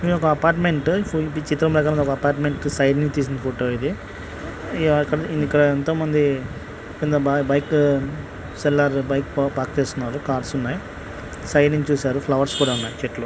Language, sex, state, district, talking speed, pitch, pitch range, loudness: Telugu, male, Andhra Pradesh, Guntur, 145 wpm, 145 Hz, 135-150 Hz, -21 LUFS